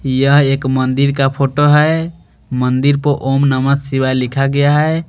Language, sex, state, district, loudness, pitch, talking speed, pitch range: Hindi, male, Bihar, Katihar, -14 LUFS, 140 Hz, 165 wpm, 135-145 Hz